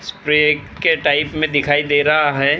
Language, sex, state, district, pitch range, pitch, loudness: Hindi, male, Maharashtra, Gondia, 145-150 Hz, 145 Hz, -16 LUFS